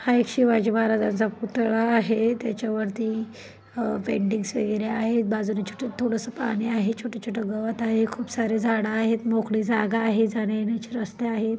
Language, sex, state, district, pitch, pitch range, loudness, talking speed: Marathi, female, Maharashtra, Pune, 225 Hz, 220-230 Hz, -25 LUFS, 150 wpm